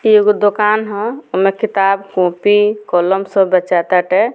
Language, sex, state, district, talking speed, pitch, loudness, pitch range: Bhojpuri, female, Bihar, Muzaffarpur, 165 wpm, 205 Hz, -14 LUFS, 190-215 Hz